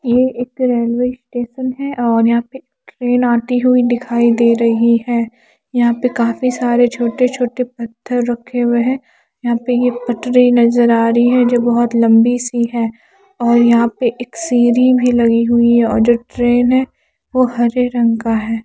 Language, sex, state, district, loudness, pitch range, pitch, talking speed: Hindi, female, Odisha, Nuapada, -14 LUFS, 235-250 Hz, 240 Hz, 180 wpm